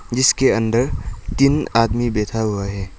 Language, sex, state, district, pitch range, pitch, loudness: Hindi, male, Arunachal Pradesh, Lower Dibang Valley, 105-130 Hz, 115 Hz, -18 LUFS